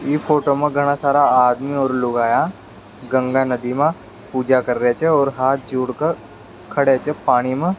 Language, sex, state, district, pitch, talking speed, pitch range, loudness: Rajasthani, male, Rajasthan, Nagaur, 135 Hz, 175 wpm, 125-145 Hz, -18 LUFS